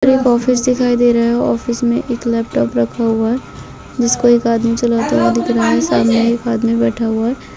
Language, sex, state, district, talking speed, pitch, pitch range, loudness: Hindi, female, Bihar, Kishanganj, 215 wpm, 235 Hz, 225-240 Hz, -15 LUFS